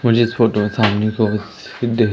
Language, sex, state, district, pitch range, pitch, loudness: Hindi, male, Madhya Pradesh, Umaria, 105-120 Hz, 110 Hz, -17 LUFS